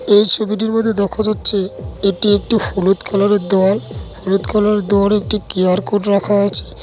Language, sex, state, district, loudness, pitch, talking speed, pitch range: Bengali, male, West Bengal, Dakshin Dinajpur, -15 LUFS, 205 Hz, 185 wpm, 195-210 Hz